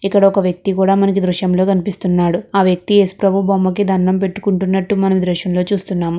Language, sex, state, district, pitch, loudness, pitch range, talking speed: Telugu, female, Andhra Pradesh, Guntur, 190 Hz, -15 LUFS, 185-195 Hz, 175 wpm